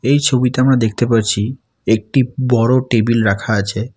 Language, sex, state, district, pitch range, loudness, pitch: Bengali, male, West Bengal, Alipurduar, 110-130 Hz, -15 LUFS, 115 Hz